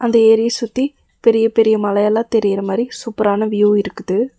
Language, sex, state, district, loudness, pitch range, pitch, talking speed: Tamil, female, Tamil Nadu, Nilgiris, -16 LUFS, 210-230 Hz, 225 Hz, 150 wpm